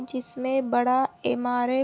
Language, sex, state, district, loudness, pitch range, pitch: Hindi, female, Chhattisgarh, Bilaspur, -25 LUFS, 245-265 Hz, 255 Hz